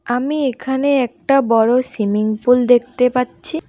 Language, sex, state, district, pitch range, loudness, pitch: Bengali, female, West Bengal, Alipurduar, 240-270 Hz, -16 LUFS, 250 Hz